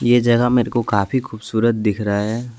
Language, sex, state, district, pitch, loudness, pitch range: Hindi, male, Jharkhand, Deoghar, 115 Hz, -18 LUFS, 110-120 Hz